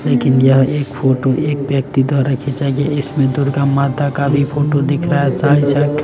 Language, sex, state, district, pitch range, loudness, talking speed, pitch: Hindi, male, Bihar, West Champaran, 135-145 Hz, -15 LUFS, 200 wpm, 140 Hz